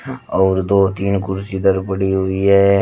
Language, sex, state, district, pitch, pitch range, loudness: Hindi, male, Uttar Pradesh, Shamli, 95 Hz, 95-100 Hz, -17 LUFS